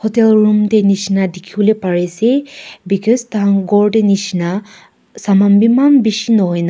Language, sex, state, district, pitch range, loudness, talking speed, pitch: Nagamese, female, Nagaland, Kohima, 195-220 Hz, -13 LUFS, 150 wpm, 205 Hz